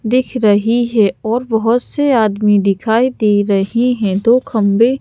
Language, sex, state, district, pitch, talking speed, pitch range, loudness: Hindi, female, Madhya Pradesh, Bhopal, 225 Hz, 155 wpm, 205-245 Hz, -14 LUFS